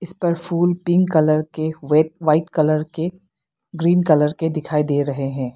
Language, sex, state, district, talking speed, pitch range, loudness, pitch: Hindi, female, Arunachal Pradesh, Lower Dibang Valley, 170 wpm, 150-175 Hz, -19 LUFS, 160 Hz